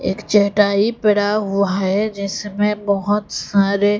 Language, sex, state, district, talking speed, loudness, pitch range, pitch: Hindi, female, Odisha, Khordha, 120 wpm, -18 LUFS, 200-210 Hz, 205 Hz